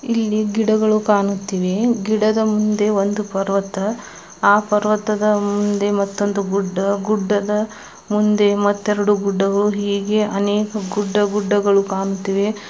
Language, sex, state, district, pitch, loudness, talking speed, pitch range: Kannada, female, Karnataka, Belgaum, 205 Hz, -18 LUFS, 110 wpm, 200-210 Hz